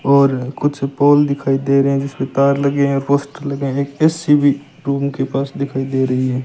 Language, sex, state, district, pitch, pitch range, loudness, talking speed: Hindi, male, Rajasthan, Bikaner, 140 Hz, 135-140 Hz, -17 LUFS, 225 wpm